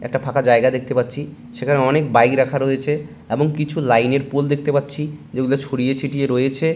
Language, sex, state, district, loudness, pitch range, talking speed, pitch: Bengali, male, West Bengal, Malda, -19 LUFS, 130-145 Hz, 195 wpm, 135 Hz